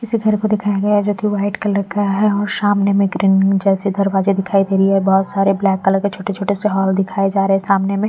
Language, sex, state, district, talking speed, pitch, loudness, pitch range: Hindi, female, Bihar, Patna, 265 wpm, 200 Hz, -16 LUFS, 195-205 Hz